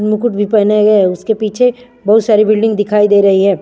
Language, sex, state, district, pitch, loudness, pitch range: Hindi, female, Chandigarh, Chandigarh, 210 Hz, -11 LUFS, 205-220 Hz